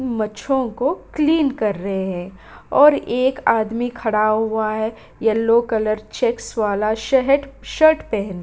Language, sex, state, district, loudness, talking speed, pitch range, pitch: Hindi, female, Bihar, Kishanganj, -19 LUFS, 140 wpm, 215-265 Hz, 225 Hz